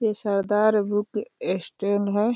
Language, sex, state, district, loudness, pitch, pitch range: Hindi, female, Uttar Pradesh, Deoria, -24 LUFS, 205 Hz, 200-215 Hz